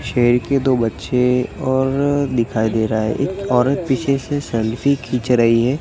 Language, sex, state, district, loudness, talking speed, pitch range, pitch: Hindi, male, Gujarat, Gandhinagar, -18 LUFS, 175 wpm, 115-135 Hz, 125 Hz